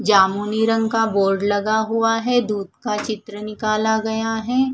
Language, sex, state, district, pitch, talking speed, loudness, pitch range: Hindi, female, Punjab, Fazilka, 220 Hz, 165 wpm, -20 LUFS, 205-225 Hz